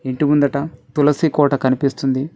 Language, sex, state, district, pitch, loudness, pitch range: Telugu, male, Telangana, Mahabubabad, 140 Hz, -17 LUFS, 135-150 Hz